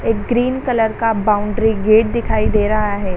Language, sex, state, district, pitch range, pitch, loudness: Hindi, female, Bihar, Sitamarhi, 210-230 Hz, 220 Hz, -16 LUFS